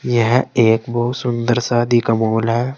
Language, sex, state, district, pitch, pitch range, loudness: Hindi, male, Uttar Pradesh, Saharanpur, 120 Hz, 115-120 Hz, -17 LUFS